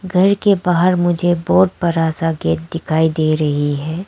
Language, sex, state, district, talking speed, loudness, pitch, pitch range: Hindi, female, Arunachal Pradesh, Lower Dibang Valley, 175 wpm, -16 LUFS, 165 Hz, 155-180 Hz